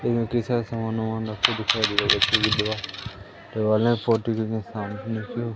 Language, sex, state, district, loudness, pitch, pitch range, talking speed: Hindi, male, Madhya Pradesh, Umaria, -24 LUFS, 110 Hz, 105-115 Hz, 85 wpm